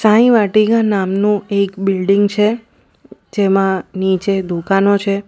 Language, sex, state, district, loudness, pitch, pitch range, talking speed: Gujarati, female, Gujarat, Valsad, -15 LUFS, 200 Hz, 195-215 Hz, 115 wpm